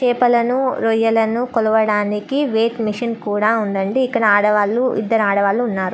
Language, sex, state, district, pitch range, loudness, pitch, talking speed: Telugu, female, Andhra Pradesh, Guntur, 210-240 Hz, -17 LUFS, 225 Hz, 120 wpm